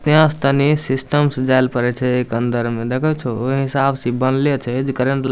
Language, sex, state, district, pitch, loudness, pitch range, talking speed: Maithili, male, Bihar, Samastipur, 130 Hz, -18 LUFS, 125-140 Hz, 260 wpm